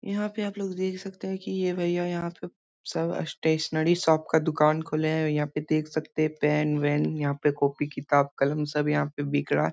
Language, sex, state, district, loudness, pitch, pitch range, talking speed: Hindi, male, Bihar, Muzaffarpur, -27 LUFS, 155 Hz, 150-175 Hz, 235 wpm